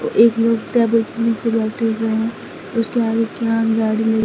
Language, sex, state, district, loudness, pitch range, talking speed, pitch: Hindi, female, Bihar, Katihar, -18 LUFS, 225-230 Hz, 195 wpm, 225 Hz